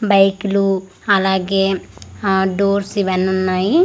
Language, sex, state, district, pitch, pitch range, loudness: Telugu, female, Andhra Pradesh, Manyam, 195 Hz, 190-200 Hz, -17 LUFS